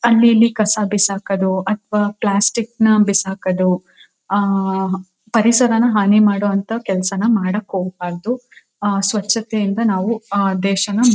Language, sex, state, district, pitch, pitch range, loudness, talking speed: Kannada, female, Karnataka, Mysore, 205 Hz, 195-225 Hz, -17 LUFS, 115 wpm